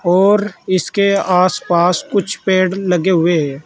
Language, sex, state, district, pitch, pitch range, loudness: Hindi, male, Uttar Pradesh, Saharanpur, 185 Hz, 175-195 Hz, -15 LUFS